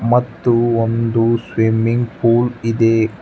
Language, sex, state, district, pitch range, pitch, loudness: Kannada, male, Karnataka, Bangalore, 115-120 Hz, 115 Hz, -16 LUFS